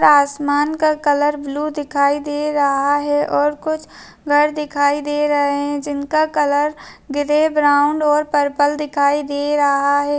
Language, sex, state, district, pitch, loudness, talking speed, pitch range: Hindi, female, Bihar, Darbhanga, 290 Hz, -17 LUFS, 155 wpm, 285-295 Hz